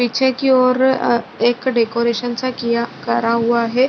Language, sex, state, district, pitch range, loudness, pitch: Hindi, female, Chhattisgarh, Bilaspur, 235-255 Hz, -17 LUFS, 240 Hz